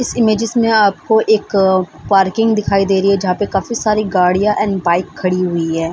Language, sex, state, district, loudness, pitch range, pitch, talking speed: Hindi, female, Bihar, Samastipur, -14 LUFS, 185-215 Hz, 195 Hz, 200 wpm